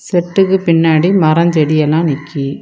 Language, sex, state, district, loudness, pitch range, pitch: Tamil, female, Tamil Nadu, Kanyakumari, -12 LUFS, 155-175 Hz, 165 Hz